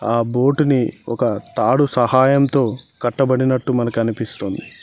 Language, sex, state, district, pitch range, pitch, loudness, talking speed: Telugu, male, Telangana, Mahabubabad, 120-135 Hz, 130 Hz, -18 LUFS, 110 wpm